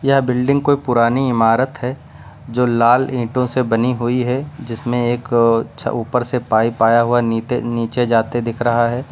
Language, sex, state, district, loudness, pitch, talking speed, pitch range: Hindi, male, Uttar Pradesh, Lucknow, -17 LUFS, 120 Hz, 185 wpm, 115-125 Hz